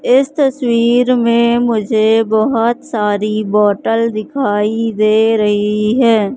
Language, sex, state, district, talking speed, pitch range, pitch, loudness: Hindi, female, Madhya Pradesh, Katni, 105 wpm, 215-235 Hz, 225 Hz, -13 LUFS